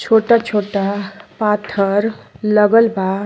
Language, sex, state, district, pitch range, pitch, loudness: Bhojpuri, female, Uttar Pradesh, Deoria, 200-220 Hz, 210 Hz, -16 LUFS